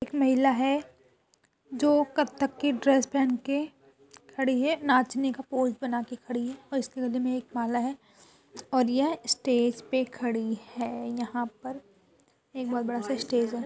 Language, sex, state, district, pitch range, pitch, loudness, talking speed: Hindi, female, Uttar Pradesh, Etah, 240-270 Hz, 255 Hz, -28 LUFS, 170 wpm